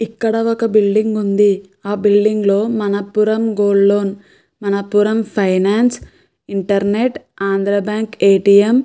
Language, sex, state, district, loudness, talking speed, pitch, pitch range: Telugu, female, Andhra Pradesh, Krishna, -15 LUFS, 115 wpm, 205 Hz, 200-220 Hz